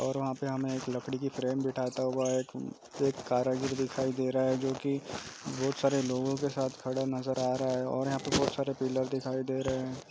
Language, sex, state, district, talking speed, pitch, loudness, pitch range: Hindi, male, Chhattisgarh, Jashpur, 230 wpm, 130 Hz, -32 LUFS, 130-135 Hz